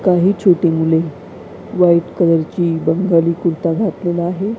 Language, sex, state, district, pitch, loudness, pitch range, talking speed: Marathi, female, Maharashtra, Gondia, 170 Hz, -15 LUFS, 165-185 Hz, 120 wpm